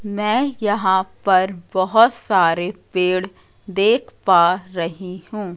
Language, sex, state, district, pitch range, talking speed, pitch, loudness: Hindi, female, Madhya Pradesh, Katni, 185-210 Hz, 110 wpm, 190 Hz, -18 LUFS